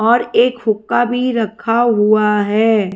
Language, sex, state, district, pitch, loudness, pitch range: Hindi, female, Haryana, Rohtak, 225 Hz, -15 LUFS, 215-240 Hz